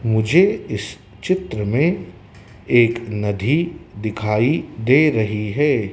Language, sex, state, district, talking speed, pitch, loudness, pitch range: Hindi, male, Madhya Pradesh, Dhar, 100 wpm, 115 Hz, -19 LUFS, 105-150 Hz